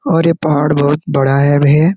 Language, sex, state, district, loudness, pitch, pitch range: Hindi, male, Chhattisgarh, Korba, -12 LUFS, 145 Hz, 145-160 Hz